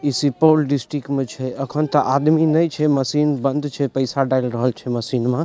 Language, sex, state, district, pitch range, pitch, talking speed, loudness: Maithili, male, Bihar, Supaul, 130-150 Hz, 140 Hz, 200 wpm, -19 LUFS